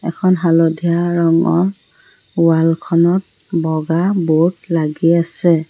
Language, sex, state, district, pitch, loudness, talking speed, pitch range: Assamese, female, Assam, Sonitpur, 170 Hz, -15 LUFS, 105 wpm, 165-175 Hz